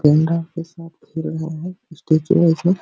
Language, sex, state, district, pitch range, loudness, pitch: Hindi, male, Jharkhand, Sahebganj, 160-170 Hz, -19 LUFS, 165 Hz